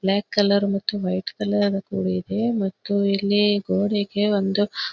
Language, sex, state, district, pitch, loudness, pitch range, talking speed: Kannada, female, Karnataka, Belgaum, 200 Hz, -22 LUFS, 195-205 Hz, 135 wpm